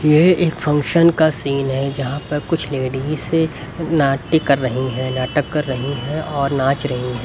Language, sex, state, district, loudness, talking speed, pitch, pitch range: Hindi, male, Haryana, Rohtak, -18 LUFS, 180 wpm, 140 Hz, 135-155 Hz